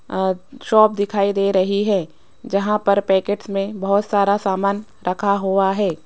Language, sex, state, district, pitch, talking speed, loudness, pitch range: Hindi, female, Rajasthan, Jaipur, 200 Hz, 160 wpm, -19 LUFS, 195-205 Hz